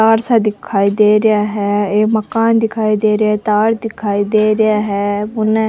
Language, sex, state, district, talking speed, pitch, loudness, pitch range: Rajasthani, female, Rajasthan, Churu, 200 wpm, 215 Hz, -14 LUFS, 210-220 Hz